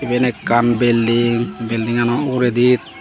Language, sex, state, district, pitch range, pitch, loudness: Chakma, male, Tripura, Dhalai, 115-125 Hz, 120 Hz, -17 LUFS